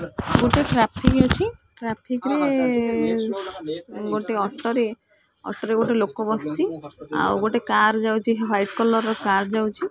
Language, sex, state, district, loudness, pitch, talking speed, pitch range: Odia, female, Odisha, Khordha, -22 LUFS, 220 Hz, 125 wpm, 205-230 Hz